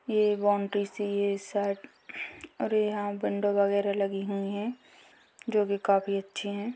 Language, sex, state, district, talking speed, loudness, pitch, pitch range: Hindi, female, Chhattisgarh, Bastar, 150 wpm, -29 LUFS, 205 Hz, 200-210 Hz